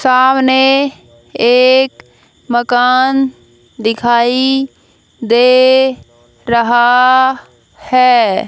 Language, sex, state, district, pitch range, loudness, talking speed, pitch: Hindi, female, Haryana, Jhajjar, 235-260 Hz, -11 LUFS, 50 wpm, 250 Hz